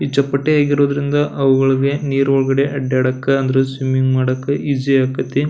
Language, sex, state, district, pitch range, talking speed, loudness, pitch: Kannada, male, Karnataka, Belgaum, 130-140 Hz, 120 wpm, -16 LUFS, 135 Hz